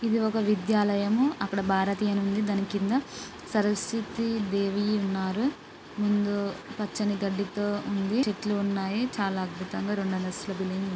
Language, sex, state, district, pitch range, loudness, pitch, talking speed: Telugu, female, Andhra Pradesh, Guntur, 195-210 Hz, -28 LUFS, 205 Hz, 130 wpm